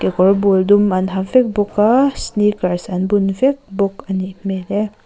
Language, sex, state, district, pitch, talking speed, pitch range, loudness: Mizo, female, Mizoram, Aizawl, 200 Hz, 200 wpm, 190-210 Hz, -16 LUFS